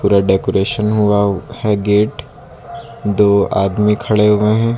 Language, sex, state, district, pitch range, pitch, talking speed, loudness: Hindi, male, Uttar Pradesh, Lucknow, 100-115 Hz, 105 Hz, 125 wpm, -14 LUFS